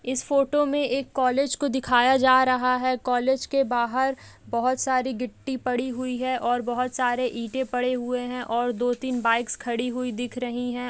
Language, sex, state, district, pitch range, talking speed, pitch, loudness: Hindi, female, Bihar, Gaya, 245-260 Hz, 200 wpm, 250 Hz, -24 LUFS